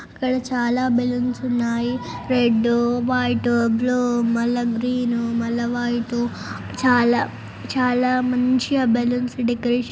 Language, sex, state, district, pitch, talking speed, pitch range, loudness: Telugu, female, Andhra Pradesh, Chittoor, 245 Hz, 95 wpm, 235-250 Hz, -21 LUFS